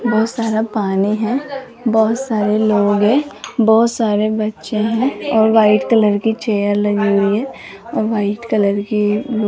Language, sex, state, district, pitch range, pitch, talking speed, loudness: Hindi, female, Rajasthan, Jaipur, 210-230 Hz, 215 Hz, 160 wpm, -16 LUFS